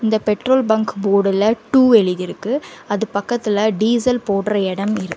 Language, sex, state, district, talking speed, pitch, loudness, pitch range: Tamil, female, Karnataka, Bangalore, 140 wpm, 215 Hz, -17 LUFS, 200-235 Hz